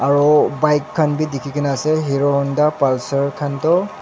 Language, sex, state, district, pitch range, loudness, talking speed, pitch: Nagamese, male, Nagaland, Dimapur, 140-155 Hz, -17 LUFS, 150 wpm, 145 Hz